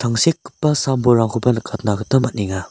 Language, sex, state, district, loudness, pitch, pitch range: Garo, male, Meghalaya, South Garo Hills, -18 LUFS, 120 Hz, 110-135 Hz